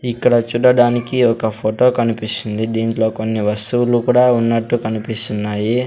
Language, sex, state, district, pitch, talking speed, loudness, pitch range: Telugu, male, Andhra Pradesh, Sri Satya Sai, 115 Hz, 110 wpm, -16 LUFS, 110-120 Hz